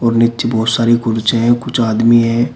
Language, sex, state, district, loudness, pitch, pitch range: Hindi, male, Uttar Pradesh, Shamli, -13 LUFS, 115 Hz, 115-120 Hz